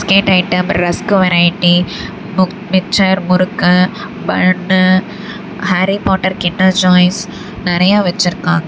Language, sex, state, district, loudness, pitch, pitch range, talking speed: Tamil, female, Tamil Nadu, Namakkal, -12 LUFS, 185 Hz, 180-195 Hz, 95 wpm